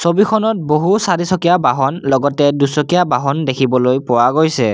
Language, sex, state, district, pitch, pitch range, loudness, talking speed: Assamese, male, Assam, Kamrup Metropolitan, 150 Hz, 135-175 Hz, -14 LUFS, 125 wpm